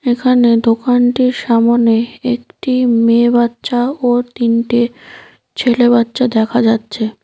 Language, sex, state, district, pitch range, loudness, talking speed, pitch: Bengali, female, West Bengal, Cooch Behar, 230-250 Hz, -13 LUFS, 110 wpm, 240 Hz